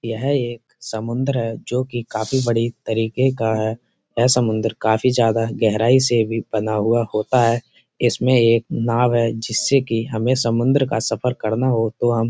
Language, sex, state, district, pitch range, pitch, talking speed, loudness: Hindi, male, Uttar Pradesh, Muzaffarnagar, 115-125 Hz, 115 Hz, 175 wpm, -19 LUFS